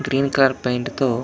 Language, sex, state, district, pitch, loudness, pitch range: Telugu, male, Andhra Pradesh, Anantapur, 135 Hz, -20 LUFS, 125-135 Hz